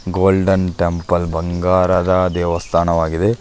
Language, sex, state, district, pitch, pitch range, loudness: Kannada, male, Karnataka, Belgaum, 90 Hz, 85-95 Hz, -16 LUFS